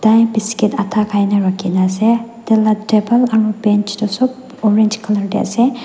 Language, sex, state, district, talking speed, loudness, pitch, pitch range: Nagamese, female, Nagaland, Dimapur, 165 wpm, -15 LUFS, 215 Hz, 210-230 Hz